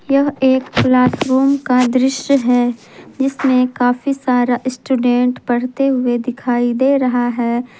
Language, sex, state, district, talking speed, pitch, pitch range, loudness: Hindi, female, Jharkhand, Ranchi, 125 wpm, 255 Hz, 245-270 Hz, -15 LUFS